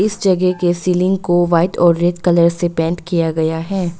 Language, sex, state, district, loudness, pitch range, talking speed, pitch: Hindi, female, Arunachal Pradesh, Longding, -16 LUFS, 170-180 Hz, 210 wpm, 175 Hz